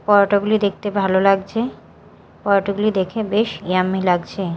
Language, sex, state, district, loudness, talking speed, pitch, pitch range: Bengali, female, Odisha, Malkangiri, -19 LUFS, 120 wpm, 200 Hz, 190-210 Hz